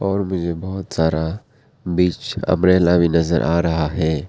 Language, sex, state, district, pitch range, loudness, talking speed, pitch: Hindi, male, Arunachal Pradesh, Papum Pare, 85-95 Hz, -19 LUFS, 155 wpm, 90 Hz